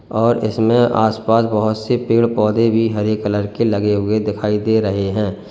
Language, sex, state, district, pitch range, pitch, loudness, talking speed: Hindi, male, Uttar Pradesh, Lalitpur, 105-115 Hz, 110 Hz, -17 LUFS, 185 wpm